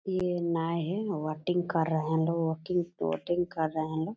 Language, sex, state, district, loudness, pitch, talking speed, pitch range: Hindi, female, Bihar, Purnia, -30 LUFS, 165 Hz, 200 wpm, 160-175 Hz